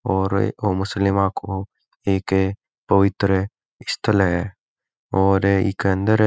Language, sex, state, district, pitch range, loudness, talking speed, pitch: Marwari, male, Rajasthan, Nagaur, 95-100 Hz, -21 LUFS, 115 wpm, 100 Hz